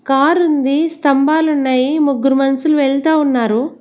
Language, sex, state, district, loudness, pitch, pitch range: Telugu, female, Andhra Pradesh, Sri Satya Sai, -14 LUFS, 280 Hz, 270-310 Hz